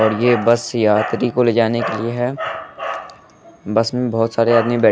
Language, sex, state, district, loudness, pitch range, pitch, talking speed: Hindi, male, Bihar, West Champaran, -17 LUFS, 115-120 Hz, 115 Hz, 185 wpm